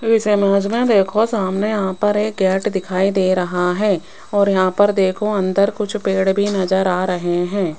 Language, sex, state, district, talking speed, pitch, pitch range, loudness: Hindi, female, Rajasthan, Jaipur, 195 wpm, 195 Hz, 185-210 Hz, -17 LUFS